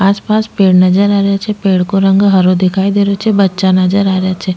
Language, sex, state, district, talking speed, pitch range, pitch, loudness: Rajasthani, female, Rajasthan, Nagaur, 265 wpm, 185-200 Hz, 195 Hz, -11 LUFS